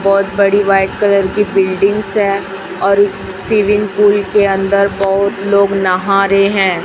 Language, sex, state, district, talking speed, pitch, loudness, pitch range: Hindi, female, Chhattisgarh, Raipur, 160 wpm, 195 Hz, -13 LUFS, 195-205 Hz